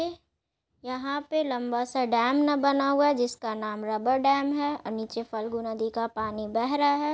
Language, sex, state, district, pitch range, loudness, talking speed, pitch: Magahi, female, Bihar, Gaya, 225-285 Hz, -27 LUFS, 210 wpm, 250 Hz